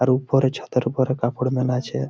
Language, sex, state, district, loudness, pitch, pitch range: Bengali, male, West Bengal, Malda, -22 LUFS, 130 Hz, 125-130 Hz